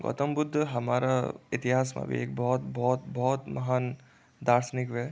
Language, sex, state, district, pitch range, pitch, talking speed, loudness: Garhwali, male, Uttarakhand, Tehri Garhwal, 120-130 Hz, 125 Hz, 155 wpm, -29 LUFS